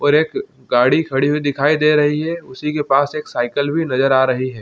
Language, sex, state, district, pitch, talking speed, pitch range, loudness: Hindi, male, Chhattisgarh, Bilaspur, 145 Hz, 245 wpm, 135-150 Hz, -17 LUFS